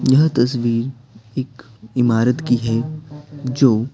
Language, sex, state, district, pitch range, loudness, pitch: Hindi, male, Bihar, Patna, 115-135 Hz, -19 LUFS, 125 Hz